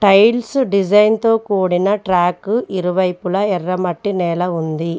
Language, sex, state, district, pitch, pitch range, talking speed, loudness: Telugu, female, Telangana, Mahabubabad, 190 Hz, 180-210 Hz, 120 wpm, -16 LUFS